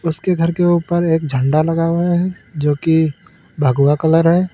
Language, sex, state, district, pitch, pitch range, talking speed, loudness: Hindi, male, Uttar Pradesh, Lalitpur, 165 Hz, 155-175 Hz, 185 wpm, -16 LUFS